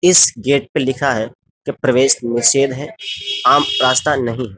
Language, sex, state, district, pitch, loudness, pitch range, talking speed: Hindi, male, Uttar Pradesh, Jyotiba Phule Nagar, 135 Hz, -15 LUFS, 125-150 Hz, 155 wpm